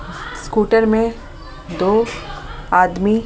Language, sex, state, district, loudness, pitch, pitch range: Hindi, female, Delhi, New Delhi, -17 LUFS, 215 Hz, 180-225 Hz